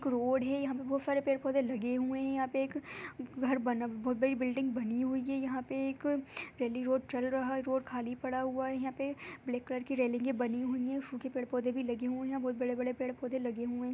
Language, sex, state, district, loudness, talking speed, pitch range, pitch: Hindi, female, Uttar Pradesh, Budaun, -35 LUFS, 235 wpm, 250-270 Hz, 260 Hz